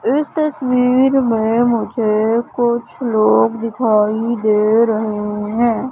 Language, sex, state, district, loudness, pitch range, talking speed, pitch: Hindi, female, Madhya Pradesh, Katni, -16 LUFS, 215-245 Hz, 100 wpm, 230 Hz